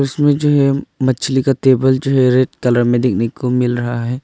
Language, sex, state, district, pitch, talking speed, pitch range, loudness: Hindi, male, Arunachal Pradesh, Longding, 130 Hz, 225 wpm, 125-135 Hz, -15 LUFS